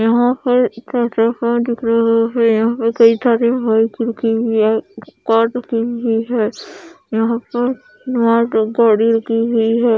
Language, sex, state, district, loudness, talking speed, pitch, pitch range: Hindi, female, Odisha, Khordha, -16 LUFS, 155 wpm, 230 Hz, 225-240 Hz